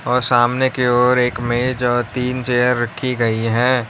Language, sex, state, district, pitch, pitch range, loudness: Hindi, male, Uttar Pradesh, Lalitpur, 125 Hz, 120-125 Hz, -17 LUFS